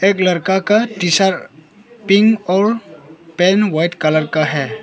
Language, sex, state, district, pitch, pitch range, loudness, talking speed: Hindi, male, Arunachal Pradesh, Lower Dibang Valley, 185 Hz, 155-205 Hz, -15 LUFS, 150 wpm